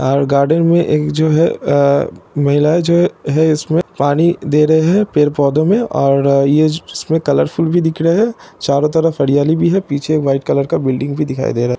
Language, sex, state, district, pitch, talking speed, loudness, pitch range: Hindi, male, Bihar, Sitamarhi, 150 Hz, 225 wpm, -14 LUFS, 140-165 Hz